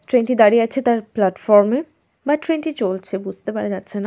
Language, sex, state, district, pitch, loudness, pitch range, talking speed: Bengali, female, West Bengal, North 24 Parganas, 220 Hz, -18 LUFS, 200-255 Hz, 220 wpm